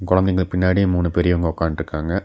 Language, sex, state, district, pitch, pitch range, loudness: Tamil, male, Tamil Nadu, Nilgiris, 90 Hz, 80-95 Hz, -19 LUFS